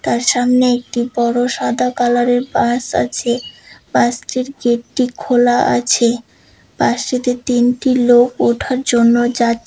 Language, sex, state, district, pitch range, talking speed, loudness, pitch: Bengali, female, West Bengal, Dakshin Dinajpur, 240-250 Hz, 145 wpm, -15 LUFS, 245 Hz